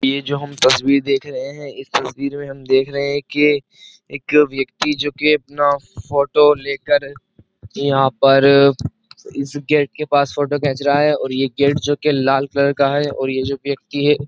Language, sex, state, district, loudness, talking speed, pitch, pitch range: Hindi, male, Uttar Pradesh, Jyotiba Phule Nagar, -17 LUFS, 195 wpm, 140 Hz, 135-145 Hz